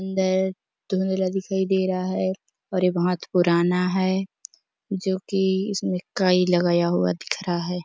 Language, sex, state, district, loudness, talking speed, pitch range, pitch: Hindi, female, Chhattisgarh, Bastar, -23 LUFS, 155 wpm, 180-190 Hz, 185 Hz